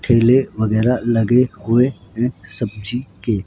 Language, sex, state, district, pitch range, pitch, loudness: Hindi, male, Rajasthan, Jaipur, 105-125 Hz, 115 Hz, -18 LUFS